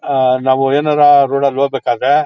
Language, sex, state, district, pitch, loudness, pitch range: Kannada, male, Karnataka, Mysore, 140 Hz, -13 LUFS, 130-145 Hz